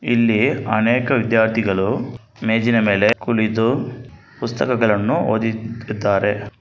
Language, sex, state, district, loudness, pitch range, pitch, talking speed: Kannada, male, Karnataka, Bangalore, -18 LUFS, 105-120 Hz, 115 Hz, 75 wpm